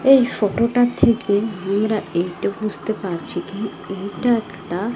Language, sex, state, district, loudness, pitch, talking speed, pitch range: Bengali, female, Odisha, Malkangiri, -21 LUFS, 210 Hz, 135 wpm, 195-230 Hz